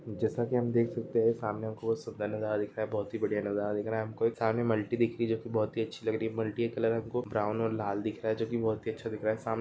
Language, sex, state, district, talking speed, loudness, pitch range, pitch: Hindi, male, Rajasthan, Churu, 250 wpm, -32 LUFS, 110-115 Hz, 110 Hz